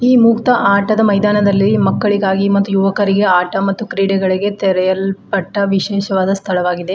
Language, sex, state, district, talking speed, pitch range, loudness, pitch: Kannada, female, Karnataka, Bidar, 110 wpm, 195-205 Hz, -14 LUFS, 200 Hz